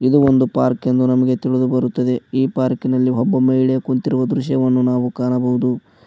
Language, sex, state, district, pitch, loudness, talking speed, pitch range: Kannada, male, Karnataka, Koppal, 130 Hz, -17 LUFS, 160 wpm, 125-130 Hz